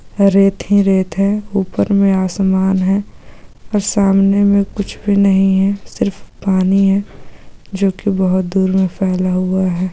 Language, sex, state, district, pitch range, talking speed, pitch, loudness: Hindi, female, Goa, North and South Goa, 190-200 Hz, 150 wpm, 195 Hz, -15 LUFS